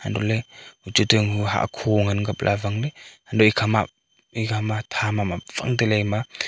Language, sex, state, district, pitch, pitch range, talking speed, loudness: Wancho, male, Arunachal Pradesh, Longding, 110 Hz, 105-115 Hz, 165 wpm, -22 LUFS